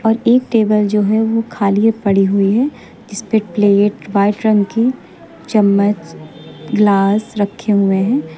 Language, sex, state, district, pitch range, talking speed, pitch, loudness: Hindi, female, Uttar Pradesh, Lucknow, 200-225 Hz, 145 wpm, 210 Hz, -14 LUFS